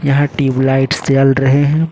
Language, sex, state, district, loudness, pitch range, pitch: Hindi, male, Jharkhand, Ranchi, -13 LUFS, 135-145 Hz, 135 Hz